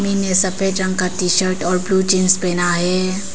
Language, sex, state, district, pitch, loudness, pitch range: Hindi, female, Arunachal Pradesh, Papum Pare, 185 Hz, -16 LUFS, 180-190 Hz